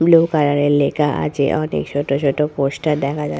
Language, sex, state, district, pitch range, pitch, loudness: Bengali, female, West Bengal, Purulia, 140-150 Hz, 145 Hz, -18 LUFS